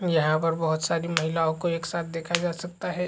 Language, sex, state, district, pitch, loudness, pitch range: Chhattisgarhi, male, Chhattisgarh, Jashpur, 165 Hz, -26 LUFS, 160-175 Hz